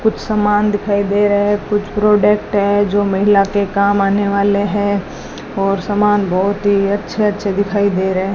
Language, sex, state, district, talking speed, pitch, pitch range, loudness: Hindi, female, Rajasthan, Bikaner, 185 wpm, 205 Hz, 200-205 Hz, -15 LUFS